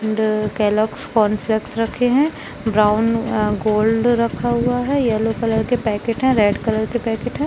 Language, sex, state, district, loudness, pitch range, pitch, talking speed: Hindi, female, Jharkhand, Jamtara, -18 LUFS, 215-240 Hz, 225 Hz, 160 wpm